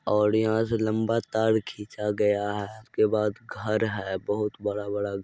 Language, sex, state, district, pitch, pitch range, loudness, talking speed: Maithili, male, Bihar, Madhepura, 105 Hz, 105-110 Hz, -27 LUFS, 170 wpm